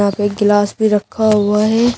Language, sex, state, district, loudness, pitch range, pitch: Hindi, female, Uttar Pradesh, Shamli, -14 LUFS, 205-220 Hz, 210 Hz